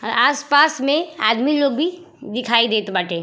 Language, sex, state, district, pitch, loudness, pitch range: Bhojpuri, female, Uttar Pradesh, Ghazipur, 280 Hz, -18 LUFS, 220-295 Hz